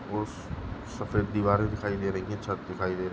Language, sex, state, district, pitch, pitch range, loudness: Hindi, male, Goa, North and South Goa, 105 Hz, 95-105 Hz, -31 LUFS